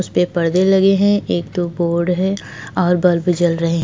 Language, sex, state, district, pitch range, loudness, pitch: Hindi, male, Uttar Pradesh, Jyotiba Phule Nagar, 170-185 Hz, -16 LUFS, 175 Hz